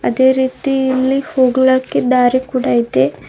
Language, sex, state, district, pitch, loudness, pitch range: Kannada, female, Karnataka, Bidar, 260 Hz, -14 LUFS, 255-260 Hz